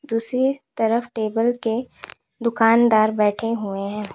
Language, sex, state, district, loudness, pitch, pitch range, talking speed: Hindi, female, Uttar Pradesh, Lalitpur, -21 LUFS, 225 Hz, 215-240 Hz, 115 wpm